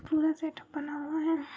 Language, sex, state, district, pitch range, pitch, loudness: Hindi, female, Chhattisgarh, Raigarh, 295-315 Hz, 310 Hz, -32 LUFS